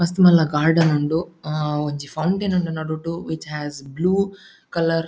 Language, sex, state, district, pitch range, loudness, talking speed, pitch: Tulu, male, Karnataka, Dakshina Kannada, 150-175 Hz, -21 LUFS, 165 wpm, 165 Hz